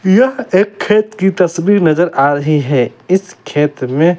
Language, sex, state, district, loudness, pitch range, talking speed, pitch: Hindi, male, Bihar, West Champaran, -13 LUFS, 150-200 Hz, 170 wpm, 180 Hz